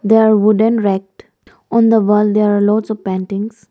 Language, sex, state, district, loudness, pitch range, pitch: English, female, Arunachal Pradesh, Lower Dibang Valley, -14 LUFS, 200-220 Hz, 210 Hz